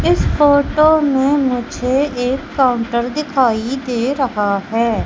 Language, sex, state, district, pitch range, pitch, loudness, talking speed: Hindi, female, Madhya Pradesh, Katni, 235-285 Hz, 260 Hz, -16 LUFS, 120 wpm